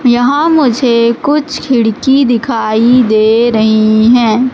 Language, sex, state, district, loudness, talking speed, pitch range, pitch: Hindi, female, Madhya Pradesh, Katni, -10 LUFS, 105 wpm, 220-260 Hz, 240 Hz